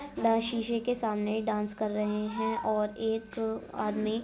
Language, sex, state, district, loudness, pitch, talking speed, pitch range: Hindi, female, Uttar Pradesh, Etah, -31 LUFS, 220 Hz, 155 wpm, 215-230 Hz